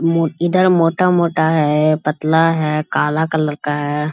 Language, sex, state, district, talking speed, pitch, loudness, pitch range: Hindi, male, Bihar, Bhagalpur, 130 wpm, 160 Hz, -16 LUFS, 150-165 Hz